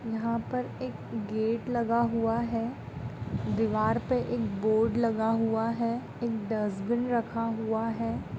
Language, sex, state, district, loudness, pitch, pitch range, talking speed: Hindi, female, Goa, North and South Goa, -30 LUFS, 225 Hz, 215-230 Hz, 135 wpm